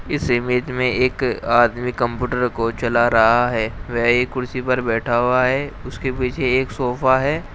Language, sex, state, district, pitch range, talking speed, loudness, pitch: Hindi, male, Uttar Pradesh, Shamli, 120-130 Hz, 175 wpm, -19 LUFS, 125 Hz